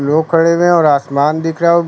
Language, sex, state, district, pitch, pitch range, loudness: Hindi, male, Uttar Pradesh, Lucknow, 165 Hz, 150-170 Hz, -12 LUFS